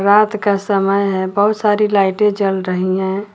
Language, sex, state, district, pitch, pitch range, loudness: Hindi, female, Uttar Pradesh, Lucknow, 200 Hz, 190-210 Hz, -15 LUFS